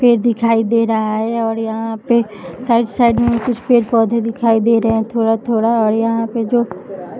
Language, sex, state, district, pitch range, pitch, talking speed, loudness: Hindi, female, Bihar, Jahanabad, 225-235 Hz, 230 Hz, 190 wpm, -15 LUFS